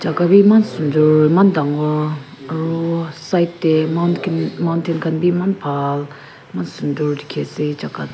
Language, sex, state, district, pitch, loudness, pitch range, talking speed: Nagamese, female, Nagaland, Kohima, 160 Hz, -17 LUFS, 150-170 Hz, 145 wpm